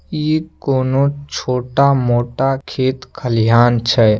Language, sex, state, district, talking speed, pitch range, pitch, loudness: Maithili, male, Bihar, Samastipur, 85 wpm, 120-140 Hz, 130 Hz, -16 LUFS